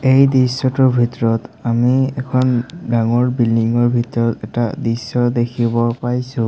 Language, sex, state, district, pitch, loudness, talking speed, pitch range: Assamese, male, Assam, Sonitpur, 120 Hz, -17 LUFS, 110 wpm, 115-130 Hz